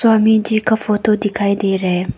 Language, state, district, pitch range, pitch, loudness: Hindi, Arunachal Pradesh, Papum Pare, 200-220 Hz, 210 Hz, -15 LUFS